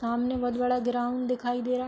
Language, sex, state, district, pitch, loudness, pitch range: Hindi, female, Uttar Pradesh, Hamirpur, 245 Hz, -28 LUFS, 245-250 Hz